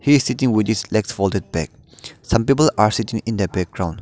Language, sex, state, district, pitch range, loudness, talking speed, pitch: English, male, Nagaland, Dimapur, 100-115 Hz, -19 LUFS, 225 wpm, 110 Hz